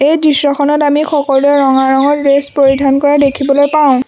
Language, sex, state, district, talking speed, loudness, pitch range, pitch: Assamese, female, Assam, Sonitpur, 160 wpm, -10 LUFS, 275-290 Hz, 285 Hz